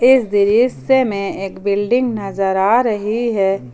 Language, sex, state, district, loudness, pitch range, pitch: Hindi, female, Jharkhand, Ranchi, -16 LUFS, 195-240 Hz, 205 Hz